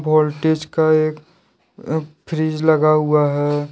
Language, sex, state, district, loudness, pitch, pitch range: Hindi, male, Jharkhand, Deoghar, -18 LUFS, 155 Hz, 150-155 Hz